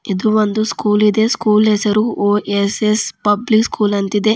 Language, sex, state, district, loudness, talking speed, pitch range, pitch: Kannada, female, Karnataka, Bidar, -15 LUFS, 150 wpm, 205-215 Hz, 210 Hz